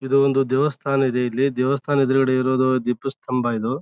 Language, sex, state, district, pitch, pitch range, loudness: Kannada, male, Karnataka, Bijapur, 130 Hz, 125-135 Hz, -20 LUFS